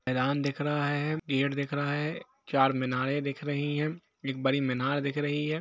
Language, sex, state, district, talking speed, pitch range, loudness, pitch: Hindi, male, Jharkhand, Jamtara, 205 wpm, 135-145 Hz, -30 LUFS, 145 Hz